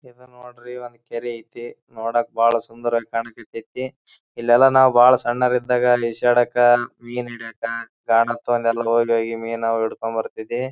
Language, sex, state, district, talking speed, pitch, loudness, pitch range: Kannada, male, Karnataka, Bijapur, 110 wpm, 120 Hz, -20 LUFS, 115-125 Hz